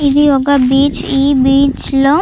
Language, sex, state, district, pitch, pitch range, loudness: Telugu, female, Andhra Pradesh, Chittoor, 275 Hz, 270-285 Hz, -11 LUFS